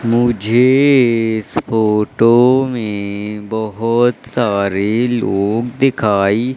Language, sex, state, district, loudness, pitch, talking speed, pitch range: Hindi, male, Madhya Pradesh, Katni, -15 LUFS, 115 Hz, 75 wpm, 105-120 Hz